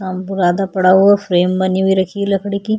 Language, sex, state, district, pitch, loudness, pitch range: Hindi, female, Chhattisgarh, Kabirdham, 190 Hz, -14 LUFS, 185-200 Hz